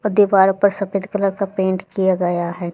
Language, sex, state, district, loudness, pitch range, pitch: Hindi, female, Haryana, Charkhi Dadri, -18 LUFS, 185-200 Hz, 195 Hz